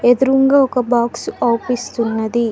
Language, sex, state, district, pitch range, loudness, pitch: Telugu, female, Telangana, Mahabubabad, 235-265 Hz, -16 LUFS, 245 Hz